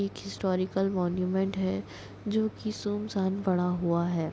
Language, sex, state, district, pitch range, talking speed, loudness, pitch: Hindi, female, Chhattisgarh, Kabirdham, 170-195 Hz, 125 wpm, -30 LUFS, 185 Hz